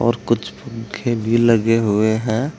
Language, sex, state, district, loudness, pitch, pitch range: Hindi, male, Uttar Pradesh, Saharanpur, -18 LUFS, 115 Hz, 110-120 Hz